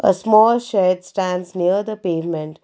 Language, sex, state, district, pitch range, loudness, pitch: English, female, Karnataka, Bangalore, 175-215 Hz, -18 LUFS, 185 Hz